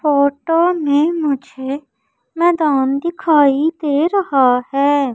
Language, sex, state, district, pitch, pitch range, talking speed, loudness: Hindi, female, Madhya Pradesh, Umaria, 285 Hz, 275-325 Hz, 95 wpm, -16 LUFS